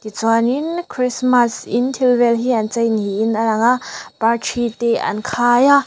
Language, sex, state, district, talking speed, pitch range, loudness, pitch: Mizo, female, Mizoram, Aizawl, 195 wpm, 225-250 Hz, -17 LUFS, 240 Hz